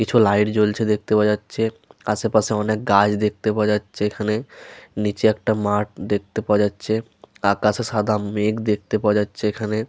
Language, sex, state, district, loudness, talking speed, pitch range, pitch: Bengali, male, Jharkhand, Sahebganj, -21 LUFS, 160 wpm, 105-110 Hz, 105 Hz